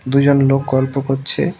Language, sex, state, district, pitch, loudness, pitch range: Bengali, male, West Bengal, Cooch Behar, 135 Hz, -15 LUFS, 135-140 Hz